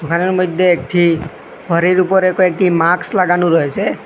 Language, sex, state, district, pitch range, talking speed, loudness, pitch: Bengali, male, Assam, Hailakandi, 170-185 Hz, 135 wpm, -14 LUFS, 180 Hz